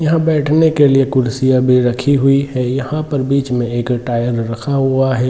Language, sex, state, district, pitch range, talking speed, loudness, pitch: Hindi, male, Chhattisgarh, Bilaspur, 125-140 Hz, 205 wpm, -15 LUFS, 130 Hz